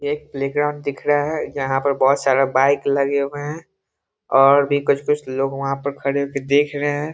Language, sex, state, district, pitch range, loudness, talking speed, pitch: Hindi, male, Bihar, Muzaffarpur, 135-145 Hz, -19 LUFS, 210 wpm, 140 Hz